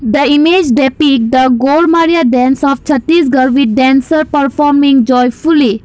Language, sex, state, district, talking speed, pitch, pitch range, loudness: English, female, Assam, Kamrup Metropolitan, 135 wpm, 275 Hz, 260-305 Hz, -9 LUFS